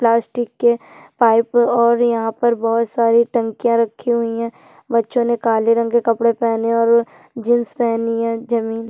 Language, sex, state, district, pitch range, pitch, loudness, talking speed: Hindi, female, Chhattisgarh, Jashpur, 230-235 Hz, 230 Hz, -17 LUFS, 160 wpm